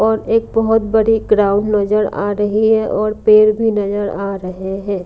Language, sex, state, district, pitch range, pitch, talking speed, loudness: Hindi, female, Punjab, Kapurthala, 200-220 Hz, 210 Hz, 190 wpm, -15 LUFS